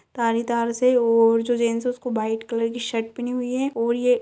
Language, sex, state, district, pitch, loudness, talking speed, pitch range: Hindi, female, Bihar, Lakhisarai, 235 Hz, -22 LUFS, 240 wpm, 230-245 Hz